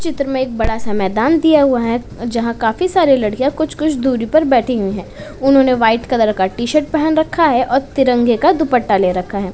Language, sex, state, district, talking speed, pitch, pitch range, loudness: Hindi, female, Uttar Pradesh, Etah, 215 wpm, 250 Hz, 225-300 Hz, -15 LUFS